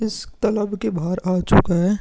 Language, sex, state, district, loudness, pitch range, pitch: Hindi, male, Uttar Pradesh, Muzaffarnagar, -20 LUFS, 180-215 Hz, 200 Hz